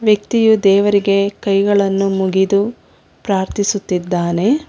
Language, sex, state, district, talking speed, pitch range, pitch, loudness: Kannada, female, Karnataka, Bangalore, 65 wpm, 195-205 Hz, 200 Hz, -15 LUFS